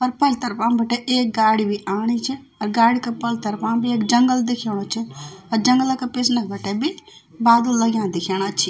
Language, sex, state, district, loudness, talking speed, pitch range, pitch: Garhwali, female, Uttarakhand, Tehri Garhwal, -20 LUFS, 195 wpm, 210-245 Hz, 230 Hz